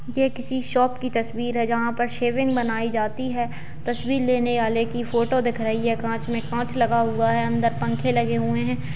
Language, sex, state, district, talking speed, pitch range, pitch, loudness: Hindi, female, Bihar, Jahanabad, 210 wpm, 225-245 Hz, 235 Hz, -23 LUFS